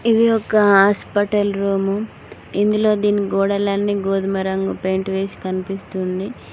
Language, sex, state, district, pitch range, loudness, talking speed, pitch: Telugu, female, Telangana, Mahabubabad, 195-205 Hz, -19 LUFS, 110 wpm, 200 Hz